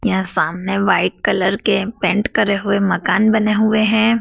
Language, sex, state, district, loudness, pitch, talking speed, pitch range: Hindi, female, Madhya Pradesh, Dhar, -16 LUFS, 200 Hz, 170 wpm, 190-215 Hz